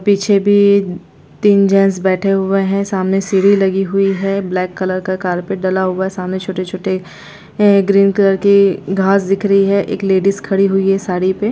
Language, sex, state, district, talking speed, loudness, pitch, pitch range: Hindi, female, Bihar, East Champaran, 180 wpm, -14 LUFS, 195 Hz, 190-200 Hz